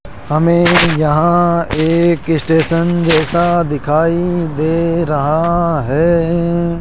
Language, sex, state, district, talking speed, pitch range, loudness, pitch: Hindi, male, Rajasthan, Jaipur, 80 wpm, 155-170 Hz, -13 LUFS, 165 Hz